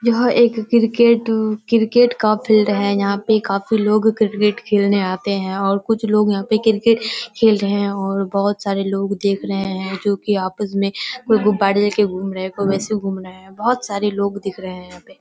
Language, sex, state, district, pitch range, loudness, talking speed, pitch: Hindi, female, Bihar, Kishanganj, 195-220 Hz, -18 LUFS, 205 wpm, 205 Hz